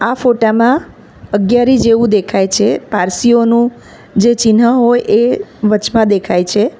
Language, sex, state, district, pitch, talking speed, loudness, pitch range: Gujarati, female, Gujarat, Valsad, 230 Hz, 130 wpm, -12 LUFS, 210-240 Hz